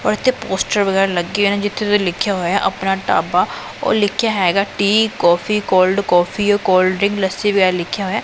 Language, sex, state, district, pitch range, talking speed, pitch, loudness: Punjabi, female, Punjab, Pathankot, 185-205 Hz, 180 wpm, 200 Hz, -16 LUFS